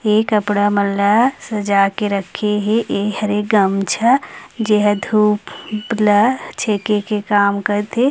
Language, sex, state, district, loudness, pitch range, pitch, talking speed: Chhattisgarhi, female, Chhattisgarh, Rajnandgaon, -17 LUFS, 205-220 Hz, 210 Hz, 140 wpm